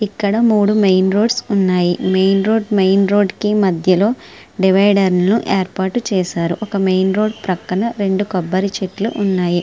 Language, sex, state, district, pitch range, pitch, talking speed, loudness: Telugu, female, Andhra Pradesh, Srikakulam, 185-210 Hz, 195 Hz, 120 wpm, -16 LUFS